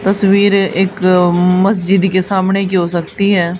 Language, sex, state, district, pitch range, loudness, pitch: Hindi, female, Haryana, Charkhi Dadri, 180-195 Hz, -13 LUFS, 190 Hz